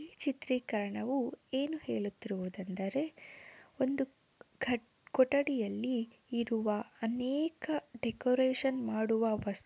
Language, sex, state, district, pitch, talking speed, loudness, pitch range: Kannada, female, Karnataka, Dharwad, 245 Hz, 80 wpm, -35 LUFS, 220-270 Hz